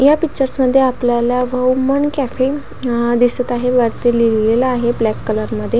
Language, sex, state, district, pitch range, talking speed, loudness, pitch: Marathi, female, Maharashtra, Pune, 235-260 Hz, 155 wpm, -15 LUFS, 245 Hz